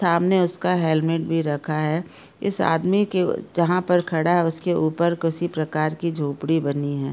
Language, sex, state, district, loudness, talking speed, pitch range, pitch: Hindi, female, Bihar, Araria, -22 LUFS, 175 wpm, 155-175 Hz, 165 Hz